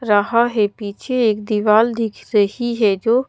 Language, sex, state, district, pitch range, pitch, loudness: Hindi, female, Madhya Pradesh, Bhopal, 210-235 Hz, 220 Hz, -17 LUFS